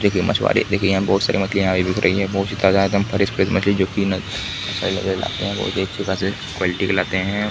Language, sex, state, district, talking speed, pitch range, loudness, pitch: Hindi, male, Bihar, Kishanganj, 190 wpm, 95-100 Hz, -20 LUFS, 95 Hz